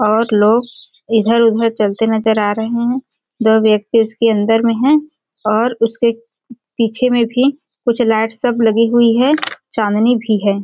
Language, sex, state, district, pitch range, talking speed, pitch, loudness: Hindi, female, Chhattisgarh, Balrampur, 220-240 Hz, 160 wpm, 230 Hz, -14 LUFS